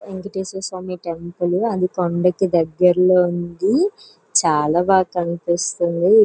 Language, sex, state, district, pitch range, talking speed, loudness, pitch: Telugu, female, Andhra Pradesh, Chittoor, 175-190 Hz, 105 wpm, -19 LUFS, 180 Hz